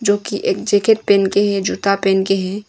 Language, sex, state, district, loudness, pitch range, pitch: Hindi, female, Arunachal Pradesh, Longding, -16 LUFS, 195-205 Hz, 200 Hz